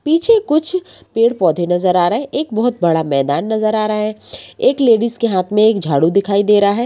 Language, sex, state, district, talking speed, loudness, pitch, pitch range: Hindi, female, Bihar, Samastipur, 225 wpm, -15 LUFS, 215 Hz, 180-240 Hz